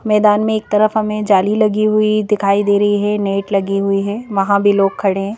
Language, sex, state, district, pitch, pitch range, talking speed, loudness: Hindi, female, Madhya Pradesh, Bhopal, 205 Hz, 200-215 Hz, 235 wpm, -15 LUFS